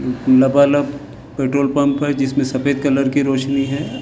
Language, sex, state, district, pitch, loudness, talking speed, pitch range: Hindi, male, Maharashtra, Gondia, 140 Hz, -17 LUFS, 165 wpm, 135-140 Hz